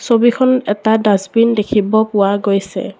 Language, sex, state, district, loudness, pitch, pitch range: Assamese, female, Assam, Kamrup Metropolitan, -14 LUFS, 215 Hz, 200-230 Hz